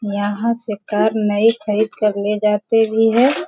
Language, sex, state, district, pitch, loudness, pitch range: Hindi, female, Bihar, Sitamarhi, 215 Hz, -17 LUFS, 210-225 Hz